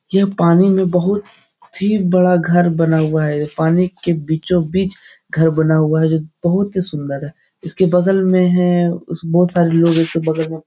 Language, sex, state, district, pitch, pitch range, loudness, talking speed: Hindi, male, Bihar, Jahanabad, 170 Hz, 160-185 Hz, -15 LUFS, 190 wpm